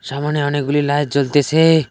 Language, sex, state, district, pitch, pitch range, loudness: Bengali, male, West Bengal, Cooch Behar, 145 Hz, 140-150 Hz, -16 LUFS